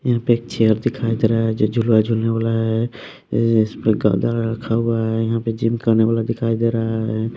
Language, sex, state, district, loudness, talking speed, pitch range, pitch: Hindi, male, Bihar, West Champaran, -19 LUFS, 230 wpm, 110-115 Hz, 115 Hz